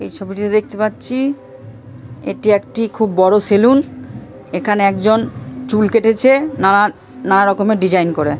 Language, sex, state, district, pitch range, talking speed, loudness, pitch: Bengali, female, West Bengal, Purulia, 180-220 Hz, 130 wpm, -14 LUFS, 205 Hz